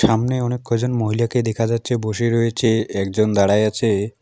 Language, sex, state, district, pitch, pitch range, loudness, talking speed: Bengali, male, West Bengal, Alipurduar, 115 Hz, 110-120 Hz, -19 LUFS, 155 wpm